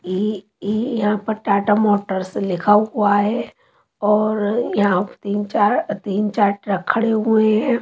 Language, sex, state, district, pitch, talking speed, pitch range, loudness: Hindi, female, Haryana, Rohtak, 210 Hz, 145 wpm, 200-215 Hz, -19 LUFS